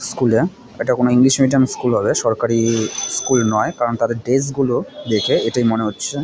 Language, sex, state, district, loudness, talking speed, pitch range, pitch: Bengali, male, West Bengal, Jalpaiguri, -17 LUFS, 185 wpm, 115-130 Hz, 120 Hz